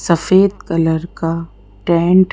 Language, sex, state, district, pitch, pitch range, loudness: Hindi, female, Madhya Pradesh, Bhopal, 170 Hz, 165-185 Hz, -15 LUFS